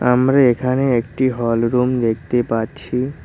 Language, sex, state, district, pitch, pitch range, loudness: Bengali, male, West Bengal, Cooch Behar, 125 Hz, 115-130 Hz, -17 LUFS